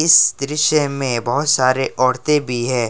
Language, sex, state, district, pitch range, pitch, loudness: Hindi, male, Jharkhand, Ranchi, 125-150 Hz, 135 Hz, -16 LUFS